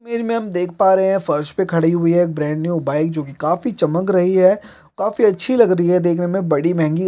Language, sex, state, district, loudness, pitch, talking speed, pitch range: Hindi, male, Bihar, East Champaran, -17 LUFS, 180 Hz, 255 wpm, 165-195 Hz